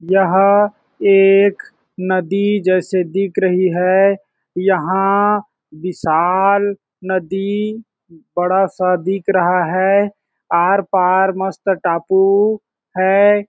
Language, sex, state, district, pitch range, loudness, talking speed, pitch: Hindi, male, Chhattisgarh, Balrampur, 185-200 Hz, -15 LUFS, 100 wpm, 190 Hz